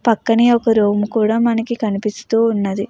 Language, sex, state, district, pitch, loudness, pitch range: Telugu, female, Andhra Pradesh, Guntur, 225 Hz, -16 LUFS, 210-230 Hz